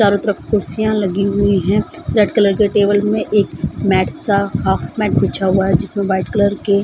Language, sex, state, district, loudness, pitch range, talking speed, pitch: Hindi, female, Bihar, Samastipur, -16 LUFS, 200-210 Hz, 210 wpm, 200 Hz